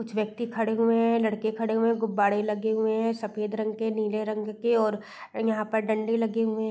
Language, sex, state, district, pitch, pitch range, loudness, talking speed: Hindi, female, Uttar Pradesh, Varanasi, 220 Hz, 215-225 Hz, -27 LUFS, 230 wpm